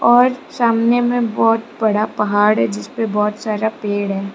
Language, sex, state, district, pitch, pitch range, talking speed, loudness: Hindi, female, Arunachal Pradesh, Lower Dibang Valley, 220 Hz, 210-235 Hz, 165 wpm, -17 LUFS